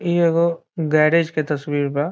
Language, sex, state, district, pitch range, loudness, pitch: Bhojpuri, male, Bihar, Saran, 150-170 Hz, -19 LUFS, 155 Hz